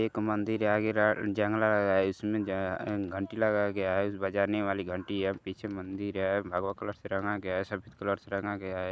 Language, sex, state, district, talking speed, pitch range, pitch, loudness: Hindi, male, Uttar Pradesh, Gorakhpur, 200 wpm, 95-105 Hz, 100 Hz, -31 LUFS